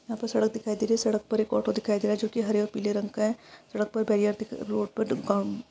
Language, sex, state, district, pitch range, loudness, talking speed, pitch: Hindi, female, Uttar Pradesh, Jalaun, 210-225 Hz, -28 LUFS, 315 wpm, 215 Hz